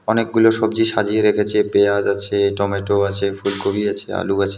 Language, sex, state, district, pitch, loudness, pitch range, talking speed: Bengali, male, West Bengal, Alipurduar, 100 Hz, -18 LUFS, 100-105 Hz, 155 wpm